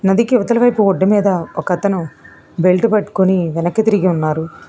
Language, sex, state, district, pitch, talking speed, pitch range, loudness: Telugu, female, Telangana, Hyderabad, 190 Hz, 155 wpm, 175-210 Hz, -15 LUFS